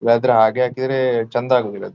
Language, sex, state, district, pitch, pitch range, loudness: Kannada, male, Karnataka, Dakshina Kannada, 125 Hz, 115-130 Hz, -17 LUFS